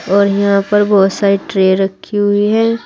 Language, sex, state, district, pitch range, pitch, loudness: Hindi, female, Uttar Pradesh, Saharanpur, 195-205 Hz, 200 Hz, -13 LUFS